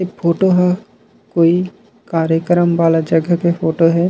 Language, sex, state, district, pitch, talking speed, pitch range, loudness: Chhattisgarhi, male, Chhattisgarh, Raigarh, 170 Hz, 145 wpm, 165-180 Hz, -15 LUFS